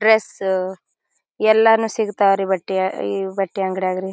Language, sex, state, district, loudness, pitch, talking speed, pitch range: Kannada, female, Karnataka, Bijapur, -19 LUFS, 195 Hz, 115 wpm, 190-215 Hz